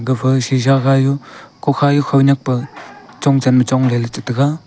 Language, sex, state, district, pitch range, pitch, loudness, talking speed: Wancho, male, Arunachal Pradesh, Longding, 130-140 Hz, 135 Hz, -15 LUFS, 155 wpm